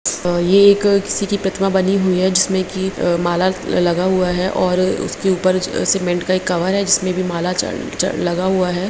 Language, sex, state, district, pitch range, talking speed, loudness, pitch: Hindi, female, Bihar, Begusarai, 180-190 Hz, 200 wpm, -17 LUFS, 185 Hz